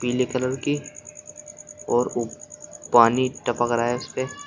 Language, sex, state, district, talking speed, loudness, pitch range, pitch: Hindi, male, Uttar Pradesh, Shamli, 145 wpm, -23 LUFS, 120-150 Hz, 125 Hz